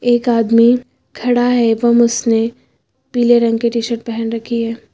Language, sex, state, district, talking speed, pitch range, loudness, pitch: Hindi, female, Uttar Pradesh, Lucknow, 170 wpm, 230-240 Hz, -15 LUFS, 235 Hz